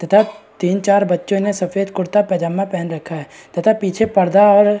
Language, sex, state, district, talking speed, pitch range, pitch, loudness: Hindi, female, Bihar, East Champaran, 185 wpm, 180-205 Hz, 195 Hz, -16 LUFS